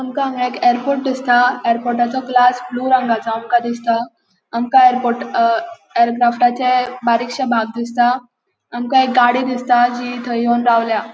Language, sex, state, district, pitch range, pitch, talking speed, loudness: Konkani, female, Goa, North and South Goa, 235-250 Hz, 245 Hz, 135 wpm, -16 LUFS